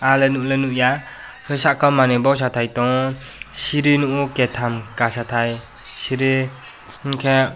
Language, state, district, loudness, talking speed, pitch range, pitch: Kokborok, Tripura, West Tripura, -19 LUFS, 110 wpm, 120-135 Hz, 130 Hz